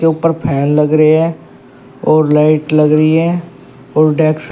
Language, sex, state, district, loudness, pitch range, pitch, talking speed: Hindi, male, Uttar Pradesh, Shamli, -12 LUFS, 150-160 Hz, 155 Hz, 170 wpm